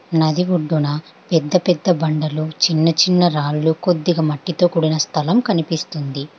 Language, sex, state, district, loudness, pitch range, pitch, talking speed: Telugu, female, Telangana, Hyderabad, -18 LUFS, 155-175 Hz, 160 Hz, 120 wpm